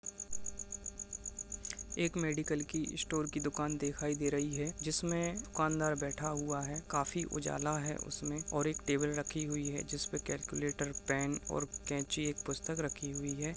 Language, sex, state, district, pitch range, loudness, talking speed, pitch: Hindi, male, Uttarakhand, Tehri Garhwal, 140-155 Hz, -37 LUFS, 155 wpm, 145 Hz